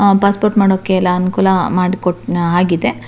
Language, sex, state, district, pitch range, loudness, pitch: Kannada, female, Karnataka, Shimoga, 180-200 Hz, -14 LUFS, 185 Hz